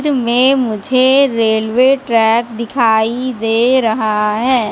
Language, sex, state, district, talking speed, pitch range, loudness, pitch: Hindi, female, Madhya Pradesh, Katni, 100 wpm, 220-255 Hz, -13 LUFS, 235 Hz